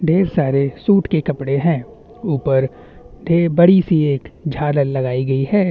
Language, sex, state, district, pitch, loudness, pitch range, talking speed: Hindi, male, Chhattisgarh, Bastar, 155 Hz, -17 LUFS, 135-175 Hz, 145 wpm